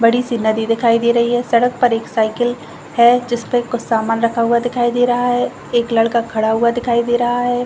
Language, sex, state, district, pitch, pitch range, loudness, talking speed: Hindi, female, Chhattisgarh, Bastar, 235 Hz, 230-245 Hz, -16 LUFS, 235 wpm